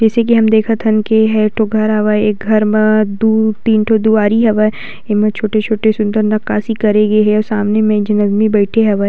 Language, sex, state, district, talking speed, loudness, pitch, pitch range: Chhattisgarhi, female, Chhattisgarh, Sukma, 210 wpm, -13 LUFS, 215 Hz, 210-220 Hz